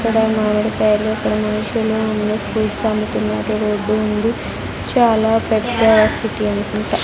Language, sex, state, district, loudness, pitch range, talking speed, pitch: Telugu, female, Andhra Pradesh, Sri Satya Sai, -17 LUFS, 210-220 Hz, 110 wpm, 215 Hz